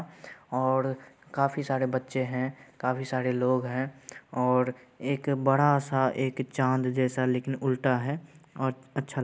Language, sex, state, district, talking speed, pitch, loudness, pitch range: Hindi, male, Bihar, Purnia, 135 wpm, 130 Hz, -28 LUFS, 130-135 Hz